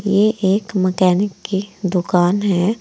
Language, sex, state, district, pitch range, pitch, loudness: Hindi, female, Uttar Pradesh, Saharanpur, 185-205 Hz, 195 Hz, -17 LUFS